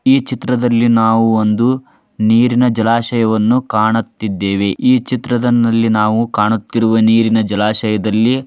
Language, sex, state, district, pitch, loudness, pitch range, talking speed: Kannada, male, Karnataka, Dharwad, 115 Hz, -14 LUFS, 110-120 Hz, 85 wpm